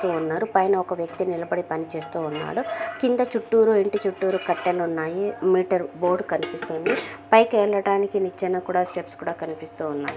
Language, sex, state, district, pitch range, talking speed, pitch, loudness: Telugu, female, Telangana, Karimnagar, 170-200 Hz, 120 wpm, 185 Hz, -24 LUFS